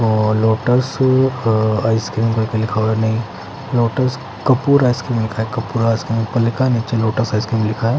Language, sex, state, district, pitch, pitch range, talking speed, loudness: Hindi, male, Chandigarh, Chandigarh, 115 Hz, 110-125 Hz, 195 wpm, -17 LUFS